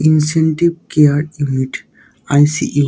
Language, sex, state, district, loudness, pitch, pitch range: Bengali, male, West Bengal, Dakshin Dinajpur, -15 LUFS, 150 Hz, 145-155 Hz